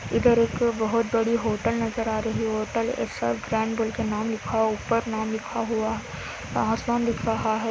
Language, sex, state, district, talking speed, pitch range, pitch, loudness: Hindi, female, Andhra Pradesh, Anantapur, 205 wpm, 220-230 Hz, 225 Hz, -25 LUFS